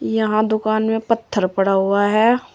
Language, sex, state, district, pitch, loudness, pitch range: Hindi, female, Uttar Pradesh, Saharanpur, 215 Hz, -18 LUFS, 200-225 Hz